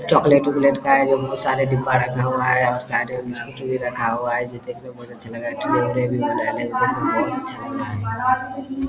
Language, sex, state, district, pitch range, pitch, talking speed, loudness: Hindi, male, Bihar, Vaishali, 120-140 Hz, 130 Hz, 175 wpm, -21 LUFS